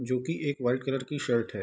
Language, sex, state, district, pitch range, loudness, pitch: Hindi, male, Bihar, Darbhanga, 120-145 Hz, -30 LUFS, 125 Hz